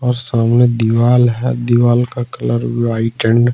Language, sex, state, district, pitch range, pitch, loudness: Hindi, male, Jharkhand, Ranchi, 115-120 Hz, 120 Hz, -14 LUFS